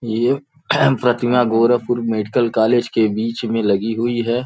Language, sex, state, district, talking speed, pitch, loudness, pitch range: Hindi, male, Uttar Pradesh, Gorakhpur, 150 wpm, 120 Hz, -18 LUFS, 115-120 Hz